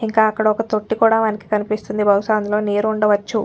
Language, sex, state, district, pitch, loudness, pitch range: Telugu, female, Telangana, Nalgonda, 215 Hz, -18 LUFS, 210-220 Hz